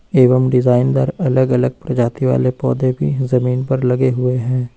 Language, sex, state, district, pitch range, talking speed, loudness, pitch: Hindi, male, Uttar Pradesh, Lucknow, 125-130 Hz, 175 wpm, -16 LUFS, 125 Hz